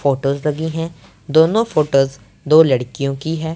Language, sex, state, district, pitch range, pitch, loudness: Hindi, male, Punjab, Pathankot, 135-160 Hz, 150 Hz, -17 LUFS